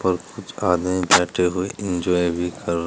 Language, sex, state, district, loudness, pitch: Hindi, male, Uttar Pradesh, Shamli, -21 LUFS, 90 Hz